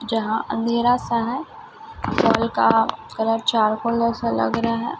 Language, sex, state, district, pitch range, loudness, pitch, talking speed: Hindi, female, Chhattisgarh, Raipur, 225-240 Hz, -21 LUFS, 230 Hz, 130 wpm